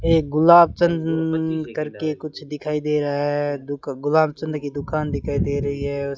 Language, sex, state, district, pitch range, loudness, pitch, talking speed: Hindi, male, Rajasthan, Bikaner, 145-160 Hz, -21 LUFS, 150 Hz, 175 wpm